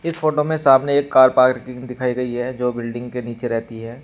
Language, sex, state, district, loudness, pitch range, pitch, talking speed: Hindi, male, Uttar Pradesh, Shamli, -18 LUFS, 120-135 Hz, 125 Hz, 225 wpm